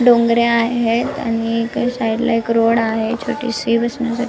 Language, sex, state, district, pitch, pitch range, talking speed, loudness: Marathi, female, Maharashtra, Nagpur, 230 Hz, 230-240 Hz, 110 wpm, -17 LUFS